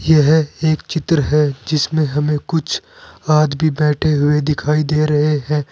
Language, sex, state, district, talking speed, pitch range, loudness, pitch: Hindi, male, Uttar Pradesh, Saharanpur, 145 wpm, 150-155 Hz, -16 LUFS, 150 Hz